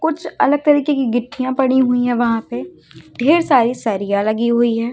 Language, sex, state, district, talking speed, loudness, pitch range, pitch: Hindi, female, Uttar Pradesh, Lucknow, 195 wpm, -16 LUFS, 225-275 Hz, 245 Hz